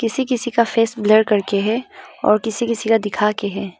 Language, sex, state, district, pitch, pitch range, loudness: Hindi, female, Arunachal Pradesh, Papum Pare, 220 Hz, 210-235 Hz, -18 LUFS